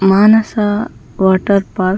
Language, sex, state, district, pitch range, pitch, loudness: Tulu, female, Karnataka, Dakshina Kannada, 190-215 Hz, 200 Hz, -13 LUFS